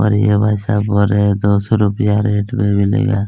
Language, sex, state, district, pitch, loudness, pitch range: Hindi, male, Chhattisgarh, Kabirdham, 105 Hz, -15 LUFS, 100-105 Hz